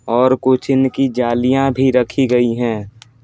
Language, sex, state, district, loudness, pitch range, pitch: Hindi, male, Bihar, Patna, -15 LUFS, 120-130 Hz, 125 Hz